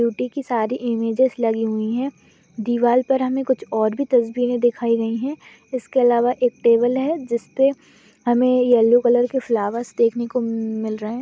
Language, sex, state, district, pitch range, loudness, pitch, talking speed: Hindi, female, Bihar, Madhepura, 230-255 Hz, -20 LUFS, 240 Hz, 180 wpm